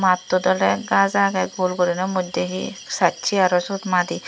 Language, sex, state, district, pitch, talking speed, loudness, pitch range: Chakma, female, Tripura, Dhalai, 185 Hz, 170 wpm, -20 LUFS, 180-190 Hz